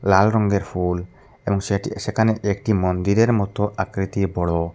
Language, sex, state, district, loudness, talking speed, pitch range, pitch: Bengali, male, Assam, Hailakandi, -21 LUFS, 140 wpm, 95-110 Hz, 100 Hz